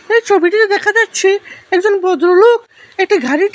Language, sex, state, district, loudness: Bengali, male, Assam, Hailakandi, -12 LUFS